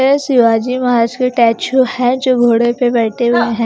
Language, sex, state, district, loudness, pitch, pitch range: Hindi, female, Himachal Pradesh, Shimla, -13 LUFS, 240 Hz, 235-255 Hz